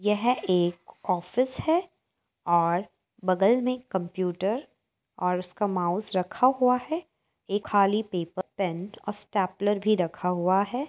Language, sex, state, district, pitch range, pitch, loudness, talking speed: Hindi, female, Uttar Pradesh, Etah, 180-230 Hz, 195 Hz, -27 LUFS, 140 wpm